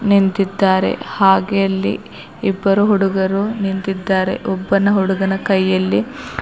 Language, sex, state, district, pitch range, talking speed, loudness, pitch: Kannada, female, Karnataka, Bidar, 190-200 Hz, 85 wpm, -17 LUFS, 195 Hz